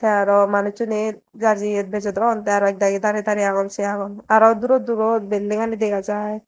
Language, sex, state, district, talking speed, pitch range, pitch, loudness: Chakma, female, Tripura, Dhalai, 175 wpm, 200-220 Hz, 210 Hz, -20 LUFS